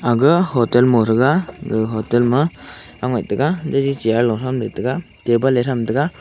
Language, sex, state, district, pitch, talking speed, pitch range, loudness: Wancho, male, Arunachal Pradesh, Longding, 125 Hz, 135 wpm, 120-140 Hz, -17 LUFS